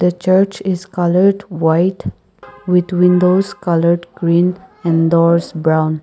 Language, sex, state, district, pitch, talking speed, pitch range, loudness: English, female, Nagaland, Kohima, 175 Hz, 110 wpm, 170-185 Hz, -15 LUFS